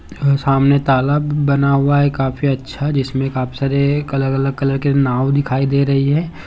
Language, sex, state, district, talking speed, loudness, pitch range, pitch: Hindi, male, Chhattisgarh, Bilaspur, 165 wpm, -16 LUFS, 135-140 Hz, 140 Hz